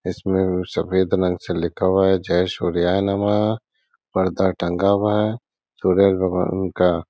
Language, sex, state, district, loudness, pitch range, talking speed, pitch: Hindi, male, Bihar, Gaya, -20 LUFS, 90-100 Hz, 150 wpm, 95 Hz